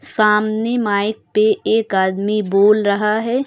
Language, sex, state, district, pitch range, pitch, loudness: Hindi, female, Uttar Pradesh, Lucknow, 205-220 Hz, 215 Hz, -16 LUFS